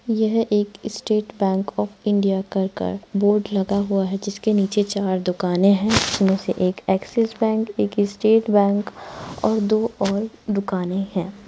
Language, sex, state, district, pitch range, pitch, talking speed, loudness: Hindi, female, Bihar, Araria, 195-215 Hz, 200 Hz, 155 wpm, -21 LUFS